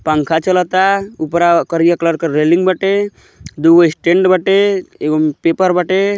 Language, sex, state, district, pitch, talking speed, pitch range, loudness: Bhojpuri, male, Uttar Pradesh, Gorakhpur, 175 Hz, 135 wpm, 165-190 Hz, -13 LUFS